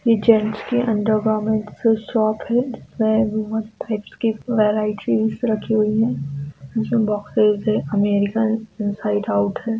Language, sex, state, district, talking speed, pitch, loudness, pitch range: Hindi, female, Bihar, East Champaran, 135 wpm, 215 Hz, -20 LUFS, 210-225 Hz